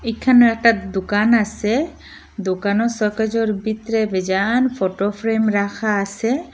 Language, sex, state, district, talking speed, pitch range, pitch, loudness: Bengali, female, Assam, Hailakandi, 110 wpm, 200-230 Hz, 220 Hz, -19 LUFS